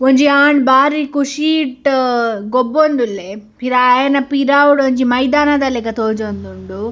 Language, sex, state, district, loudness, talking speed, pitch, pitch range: Tulu, female, Karnataka, Dakshina Kannada, -13 LUFS, 105 wpm, 260 Hz, 230-285 Hz